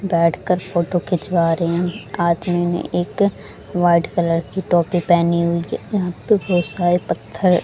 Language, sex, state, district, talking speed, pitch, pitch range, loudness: Hindi, female, Haryana, Jhajjar, 155 wpm, 175 Hz, 170-180 Hz, -19 LUFS